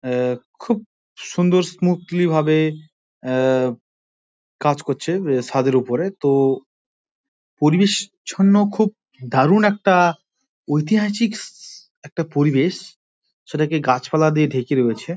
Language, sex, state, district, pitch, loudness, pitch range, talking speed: Bengali, male, West Bengal, Dakshin Dinajpur, 155 Hz, -19 LUFS, 135-195 Hz, 95 wpm